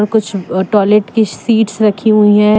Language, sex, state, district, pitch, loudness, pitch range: Hindi, female, Jharkhand, Deoghar, 210 Hz, -12 LUFS, 200-220 Hz